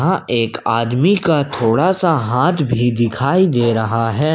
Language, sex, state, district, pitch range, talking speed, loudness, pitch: Hindi, male, Jharkhand, Ranchi, 115-165 Hz, 165 wpm, -16 LUFS, 125 Hz